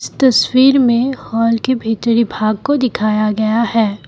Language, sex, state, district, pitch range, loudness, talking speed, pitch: Hindi, female, Assam, Kamrup Metropolitan, 215-255 Hz, -14 LUFS, 160 wpm, 230 Hz